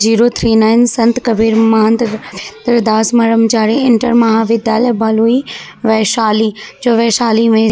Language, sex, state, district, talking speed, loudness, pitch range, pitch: Hindi, female, Bihar, Vaishali, 130 wpm, -12 LUFS, 220-235 Hz, 225 Hz